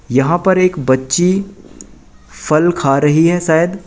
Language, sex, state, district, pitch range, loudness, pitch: Hindi, male, Madhya Pradesh, Katni, 135-175 Hz, -13 LUFS, 160 Hz